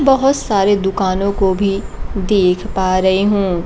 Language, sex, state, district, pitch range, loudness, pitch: Hindi, female, Bihar, Kaimur, 190-205 Hz, -15 LUFS, 195 Hz